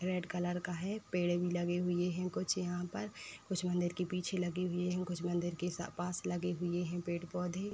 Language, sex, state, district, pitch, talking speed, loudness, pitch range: Hindi, female, Uttar Pradesh, Etah, 180 Hz, 225 wpm, -37 LUFS, 175-180 Hz